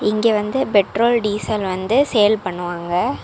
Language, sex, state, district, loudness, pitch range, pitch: Tamil, female, Tamil Nadu, Kanyakumari, -18 LUFS, 185-225 Hz, 210 Hz